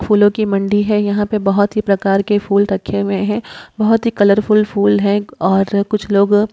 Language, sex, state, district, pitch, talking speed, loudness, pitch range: Hindi, female, Uttar Pradesh, Muzaffarnagar, 205 Hz, 210 wpm, -15 LUFS, 200-210 Hz